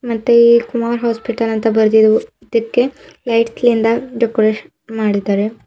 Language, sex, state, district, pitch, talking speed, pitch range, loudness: Kannada, female, Karnataka, Bidar, 230 Hz, 95 wpm, 220-235 Hz, -15 LUFS